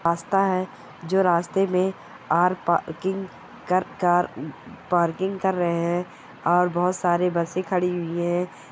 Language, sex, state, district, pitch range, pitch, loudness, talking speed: Hindi, male, West Bengal, Malda, 170-185 Hz, 180 Hz, -24 LUFS, 130 wpm